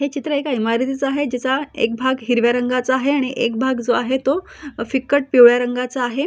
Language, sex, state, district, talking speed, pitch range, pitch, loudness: Marathi, female, Maharashtra, Solapur, 200 wpm, 245-280 Hz, 260 Hz, -18 LUFS